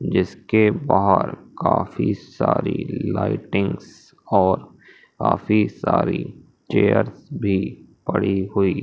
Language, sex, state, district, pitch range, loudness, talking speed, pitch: Hindi, male, Madhya Pradesh, Umaria, 95-105 Hz, -21 LUFS, 80 wpm, 100 Hz